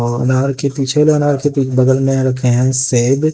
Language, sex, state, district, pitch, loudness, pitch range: Hindi, male, Haryana, Jhajjar, 130 Hz, -14 LUFS, 130-140 Hz